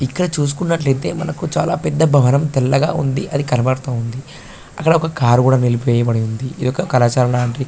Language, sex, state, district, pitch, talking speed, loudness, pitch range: Telugu, male, Telangana, Karimnagar, 130 Hz, 170 wpm, -17 LUFS, 125-145 Hz